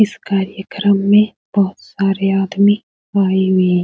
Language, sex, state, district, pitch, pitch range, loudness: Hindi, female, Bihar, Supaul, 195 Hz, 195-205 Hz, -16 LUFS